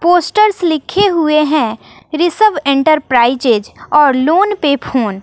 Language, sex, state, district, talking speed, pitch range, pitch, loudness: Hindi, female, Bihar, West Champaran, 125 wpm, 265-350 Hz, 305 Hz, -12 LUFS